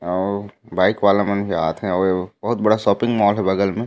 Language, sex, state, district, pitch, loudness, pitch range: Chhattisgarhi, male, Chhattisgarh, Raigarh, 100 Hz, -19 LUFS, 95-105 Hz